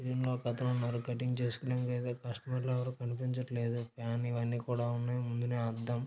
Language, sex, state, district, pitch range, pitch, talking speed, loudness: Telugu, male, Telangana, Nalgonda, 120-125 Hz, 120 Hz, 140 wpm, -36 LUFS